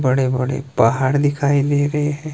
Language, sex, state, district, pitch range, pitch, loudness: Hindi, male, Himachal Pradesh, Shimla, 130-145 Hz, 140 Hz, -18 LUFS